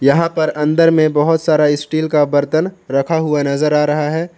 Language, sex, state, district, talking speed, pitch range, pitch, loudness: Hindi, male, Jharkhand, Palamu, 205 wpm, 150-160 Hz, 150 Hz, -15 LUFS